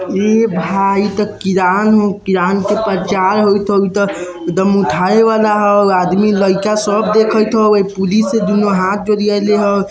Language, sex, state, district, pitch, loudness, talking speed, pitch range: Bajjika, male, Bihar, Vaishali, 205 Hz, -13 LUFS, 165 wpm, 195-210 Hz